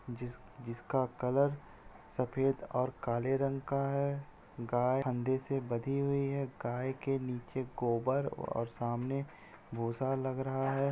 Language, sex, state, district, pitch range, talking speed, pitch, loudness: Hindi, male, Uttar Pradesh, Etah, 120-135 Hz, 135 wpm, 130 Hz, -35 LUFS